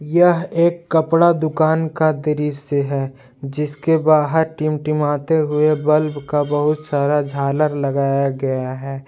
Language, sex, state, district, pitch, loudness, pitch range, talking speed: Hindi, male, Jharkhand, Palamu, 150 Hz, -18 LUFS, 140-155 Hz, 125 wpm